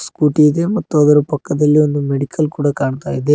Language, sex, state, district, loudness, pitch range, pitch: Kannada, male, Karnataka, Koppal, -15 LUFS, 145-150 Hz, 150 Hz